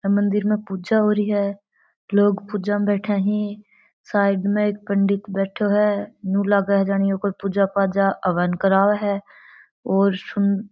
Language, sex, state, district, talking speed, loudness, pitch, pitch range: Marwari, female, Rajasthan, Churu, 155 wpm, -21 LUFS, 200 Hz, 195-205 Hz